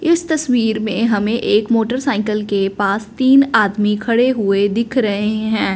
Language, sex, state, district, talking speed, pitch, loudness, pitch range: Hindi, female, Punjab, Fazilka, 155 wpm, 220 Hz, -16 LUFS, 210-245 Hz